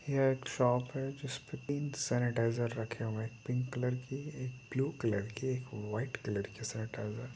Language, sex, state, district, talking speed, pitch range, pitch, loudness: Hindi, male, Chhattisgarh, Raigarh, 155 wpm, 115-135 Hz, 125 Hz, -36 LUFS